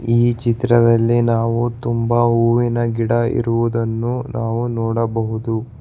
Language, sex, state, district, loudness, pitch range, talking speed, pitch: Kannada, male, Karnataka, Bangalore, -18 LUFS, 115-120 Hz, 95 wpm, 115 Hz